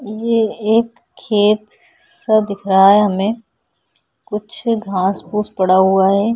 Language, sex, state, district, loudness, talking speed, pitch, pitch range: Hindi, female, Chhattisgarh, Korba, -16 LUFS, 130 wpm, 210 Hz, 200-225 Hz